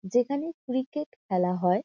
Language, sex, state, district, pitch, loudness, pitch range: Bengali, female, West Bengal, Kolkata, 250 Hz, -29 LUFS, 185-285 Hz